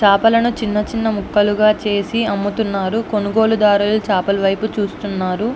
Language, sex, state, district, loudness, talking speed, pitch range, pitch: Telugu, female, Andhra Pradesh, Anantapur, -17 LUFS, 120 wpm, 200-220 Hz, 210 Hz